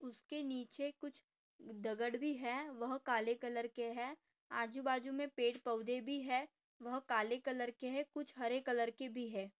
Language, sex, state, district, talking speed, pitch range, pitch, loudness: Hindi, female, Maharashtra, Pune, 170 wpm, 235-270 Hz, 250 Hz, -41 LUFS